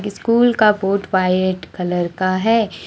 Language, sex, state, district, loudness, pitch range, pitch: Hindi, female, Jharkhand, Deoghar, -17 LUFS, 185-215 Hz, 195 Hz